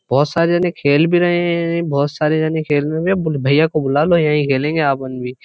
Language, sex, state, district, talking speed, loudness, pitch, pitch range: Hindi, male, Uttar Pradesh, Jyotiba Phule Nagar, 230 wpm, -16 LUFS, 155 Hz, 145-170 Hz